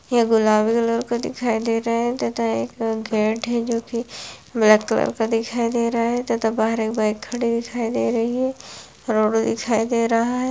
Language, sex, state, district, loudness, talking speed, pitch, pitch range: Hindi, female, Bihar, Purnia, -21 LUFS, 195 wpm, 230 Hz, 220-235 Hz